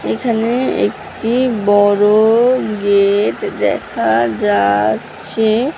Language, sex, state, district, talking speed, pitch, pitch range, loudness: Bengali, female, West Bengal, Malda, 60 wpm, 205 Hz, 145-230 Hz, -14 LUFS